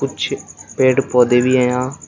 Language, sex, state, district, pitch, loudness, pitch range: Hindi, male, Uttar Pradesh, Shamli, 130 Hz, -16 LUFS, 125-130 Hz